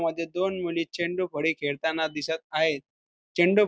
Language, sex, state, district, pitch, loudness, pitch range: Marathi, male, Maharashtra, Pune, 165 Hz, -28 LUFS, 160-175 Hz